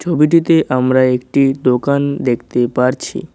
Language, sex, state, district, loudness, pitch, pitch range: Bengali, male, West Bengal, Alipurduar, -14 LUFS, 130 Hz, 125-140 Hz